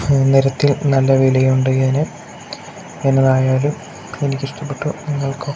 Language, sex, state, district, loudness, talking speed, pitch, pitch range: Malayalam, male, Kerala, Kasaragod, -16 LUFS, 75 wpm, 140 Hz, 135-145 Hz